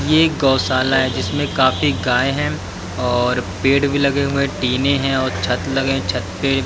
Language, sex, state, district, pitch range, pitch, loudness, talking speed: Hindi, male, Haryana, Jhajjar, 120-140 Hz, 130 Hz, -18 LUFS, 180 wpm